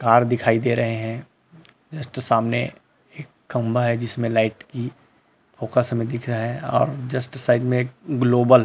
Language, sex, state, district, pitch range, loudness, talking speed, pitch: Hindi, male, Chhattisgarh, Rajnandgaon, 115-130 Hz, -22 LUFS, 175 wpm, 120 Hz